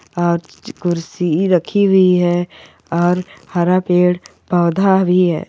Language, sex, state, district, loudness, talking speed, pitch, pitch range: Hindi, female, Jharkhand, Sahebganj, -16 LUFS, 120 wpm, 180 Hz, 175-185 Hz